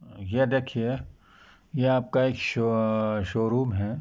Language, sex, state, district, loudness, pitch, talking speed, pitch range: Hindi, male, Uttar Pradesh, Muzaffarnagar, -26 LUFS, 120 Hz, 135 wpm, 110-130 Hz